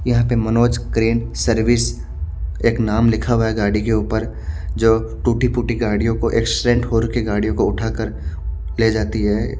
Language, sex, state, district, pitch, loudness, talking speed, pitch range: Hindi, male, Haryana, Charkhi Dadri, 115 Hz, -19 LUFS, 170 wpm, 105-115 Hz